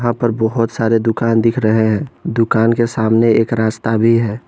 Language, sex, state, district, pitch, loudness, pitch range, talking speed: Hindi, male, Jharkhand, Garhwa, 115 Hz, -15 LUFS, 110-115 Hz, 200 wpm